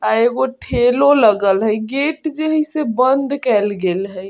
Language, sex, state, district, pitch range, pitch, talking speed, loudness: Bajjika, female, Bihar, Vaishali, 205-285 Hz, 245 Hz, 180 wpm, -16 LUFS